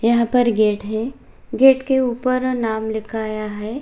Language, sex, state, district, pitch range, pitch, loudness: Hindi, female, Bihar, Bhagalpur, 220-255 Hz, 230 Hz, -19 LUFS